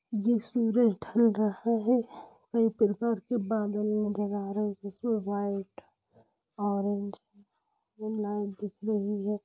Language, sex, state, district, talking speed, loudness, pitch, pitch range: Hindi, female, Jharkhand, Jamtara, 110 wpm, -30 LUFS, 210 Hz, 205-230 Hz